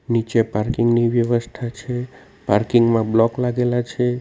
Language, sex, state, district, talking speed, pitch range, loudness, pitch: Gujarati, male, Gujarat, Navsari, 140 wpm, 115-120 Hz, -19 LUFS, 120 Hz